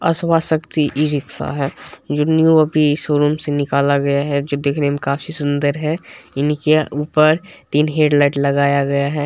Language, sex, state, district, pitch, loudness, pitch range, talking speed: Hindi, male, Bihar, Supaul, 150 Hz, -17 LUFS, 140-155 Hz, 140 wpm